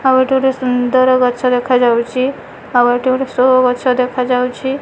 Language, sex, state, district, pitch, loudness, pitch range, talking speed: Odia, female, Odisha, Malkangiri, 255 Hz, -14 LUFS, 250-260 Hz, 150 wpm